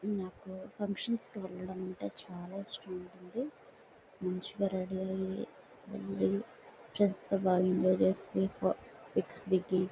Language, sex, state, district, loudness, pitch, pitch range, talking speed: Telugu, female, Andhra Pradesh, Guntur, -35 LUFS, 185 Hz, 185-195 Hz, 110 wpm